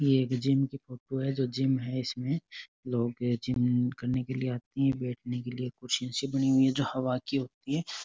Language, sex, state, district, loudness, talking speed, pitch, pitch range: Marwari, male, Rajasthan, Nagaur, -30 LUFS, 200 wpm, 130 Hz, 125-135 Hz